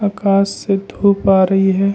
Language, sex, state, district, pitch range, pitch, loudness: Hindi, male, Jharkhand, Ranchi, 195-200 Hz, 195 Hz, -15 LUFS